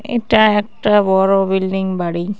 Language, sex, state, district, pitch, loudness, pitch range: Bengali, female, West Bengal, Cooch Behar, 195 Hz, -15 LUFS, 190-215 Hz